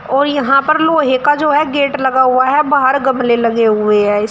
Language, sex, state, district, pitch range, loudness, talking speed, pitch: Hindi, female, Uttar Pradesh, Shamli, 240-290 Hz, -12 LUFS, 235 wpm, 270 Hz